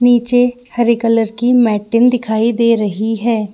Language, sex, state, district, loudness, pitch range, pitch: Hindi, female, Jharkhand, Jamtara, -14 LUFS, 220-245 Hz, 235 Hz